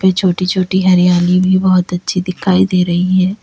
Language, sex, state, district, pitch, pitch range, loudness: Hindi, female, Uttar Pradesh, Lalitpur, 185 Hz, 180-185 Hz, -13 LUFS